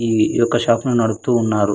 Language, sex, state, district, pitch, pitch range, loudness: Telugu, male, Andhra Pradesh, Anantapur, 115 Hz, 110-120 Hz, -17 LUFS